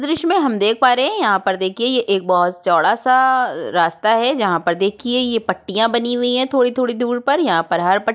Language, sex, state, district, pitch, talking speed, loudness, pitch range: Hindi, female, Uttarakhand, Tehri Garhwal, 230 Hz, 235 wpm, -17 LUFS, 195-255 Hz